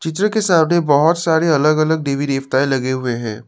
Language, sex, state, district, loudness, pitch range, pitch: Hindi, male, Assam, Sonitpur, -16 LUFS, 135-160 Hz, 155 Hz